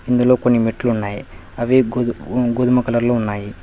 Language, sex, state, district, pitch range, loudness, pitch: Telugu, male, Telangana, Hyderabad, 115-125 Hz, -18 LUFS, 120 Hz